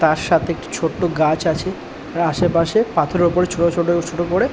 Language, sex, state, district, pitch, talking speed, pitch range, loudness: Bengali, male, West Bengal, Dakshin Dinajpur, 170 Hz, 185 wpm, 165-180 Hz, -18 LUFS